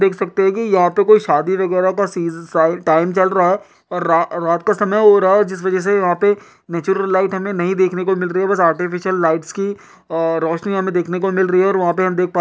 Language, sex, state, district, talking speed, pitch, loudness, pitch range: Hindi, male, Uttar Pradesh, Deoria, 230 wpm, 185 Hz, -16 LUFS, 175-195 Hz